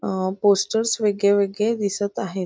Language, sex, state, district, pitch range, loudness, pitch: Marathi, female, Maharashtra, Nagpur, 195-215 Hz, -21 LUFS, 200 Hz